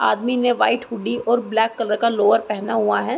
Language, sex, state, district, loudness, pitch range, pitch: Hindi, female, Uttar Pradesh, Varanasi, -19 LUFS, 220-240 Hz, 225 Hz